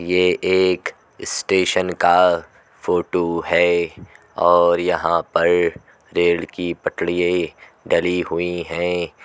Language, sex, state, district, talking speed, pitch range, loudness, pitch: Hindi, male, Uttar Pradesh, Muzaffarnagar, 95 wpm, 85-90 Hz, -19 LUFS, 85 Hz